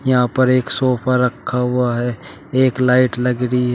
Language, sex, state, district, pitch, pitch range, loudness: Hindi, male, Uttar Pradesh, Shamli, 125 Hz, 125-130 Hz, -17 LUFS